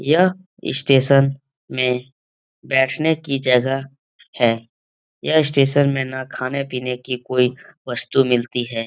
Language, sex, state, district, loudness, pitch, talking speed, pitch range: Hindi, male, Bihar, Lakhisarai, -19 LUFS, 130 Hz, 130 wpm, 125-140 Hz